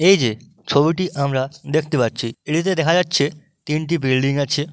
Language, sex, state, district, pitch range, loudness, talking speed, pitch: Bengali, male, West Bengal, Dakshin Dinajpur, 135-165 Hz, -19 LUFS, 150 wpm, 145 Hz